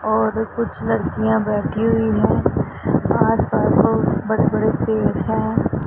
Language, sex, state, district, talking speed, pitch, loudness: Hindi, female, Punjab, Pathankot, 135 wpm, 145 Hz, -19 LUFS